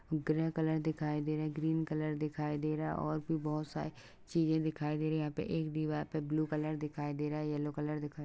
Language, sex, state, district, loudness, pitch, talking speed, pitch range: Hindi, female, Uttar Pradesh, Jyotiba Phule Nagar, -36 LUFS, 155 Hz, 255 wpm, 150-155 Hz